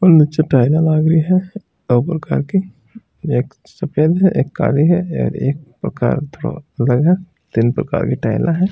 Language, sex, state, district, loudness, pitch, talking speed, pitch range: Marwari, male, Rajasthan, Churu, -16 LUFS, 160 Hz, 180 wpm, 145-175 Hz